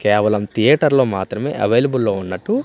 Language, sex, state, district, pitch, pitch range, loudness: Telugu, male, Andhra Pradesh, Manyam, 110 Hz, 105-140 Hz, -17 LUFS